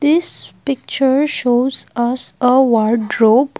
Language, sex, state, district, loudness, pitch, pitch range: English, female, Assam, Kamrup Metropolitan, -15 LUFS, 255 Hz, 240-275 Hz